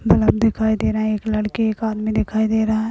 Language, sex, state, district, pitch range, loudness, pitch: Hindi, female, Rajasthan, Churu, 215-220 Hz, -19 LUFS, 220 Hz